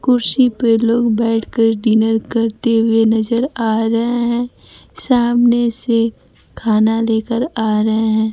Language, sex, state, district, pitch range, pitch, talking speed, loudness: Hindi, female, Bihar, Kaimur, 225-240 Hz, 230 Hz, 130 wpm, -15 LUFS